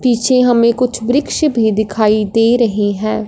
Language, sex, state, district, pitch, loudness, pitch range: Hindi, female, Punjab, Fazilka, 230 Hz, -13 LUFS, 215-245 Hz